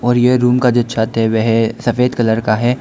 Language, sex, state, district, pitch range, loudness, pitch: Hindi, male, Arunachal Pradesh, Lower Dibang Valley, 115-125 Hz, -14 LUFS, 120 Hz